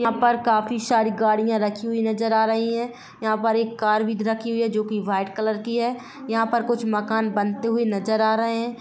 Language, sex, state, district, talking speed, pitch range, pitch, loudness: Hindi, female, Bihar, Sitamarhi, 240 wpm, 215-230 Hz, 225 Hz, -22 LUFS